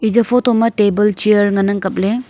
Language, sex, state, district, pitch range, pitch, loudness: Wancho, female, Arunachal Pradesh, Longding, 200-230 Hz, 210 Hz, -14 LUFS